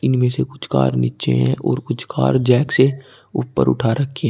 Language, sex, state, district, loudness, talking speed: Hindi, male, Uttar Pradesh, Shamli, -18 LUFS, 210 wpm